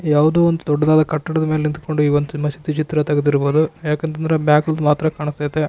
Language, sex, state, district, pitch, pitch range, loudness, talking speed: Kannada, male, Karnataka, Raichur, 155 Hz, 150-155 Hz, -18 LUFS, 150 wpm